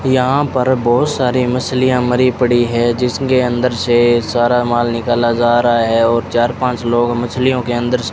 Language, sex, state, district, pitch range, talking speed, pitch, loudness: Hindi, male, Rajasthan, Bikaner, 120-125 Hz, 190 wpm, 120 Hz, -14 LUFS